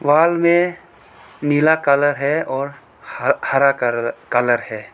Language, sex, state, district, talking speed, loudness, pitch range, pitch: Hindi, male, Arunachal Pradesh, Lower Dibang Valley, 135 wpm, -17 LUFS, 120-155 Hz, 140 Hz